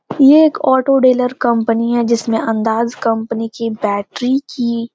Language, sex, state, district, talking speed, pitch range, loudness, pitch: Hindi, female, Bihar, Gopalganj, 155 wpm, 225-260 Hz, -15 LUFS, 235 Hz